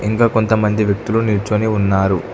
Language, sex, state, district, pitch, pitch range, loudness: Telugu, male, Telangana, Hyderabad, 105 Hz, 100-110 Hz, -16 LUFS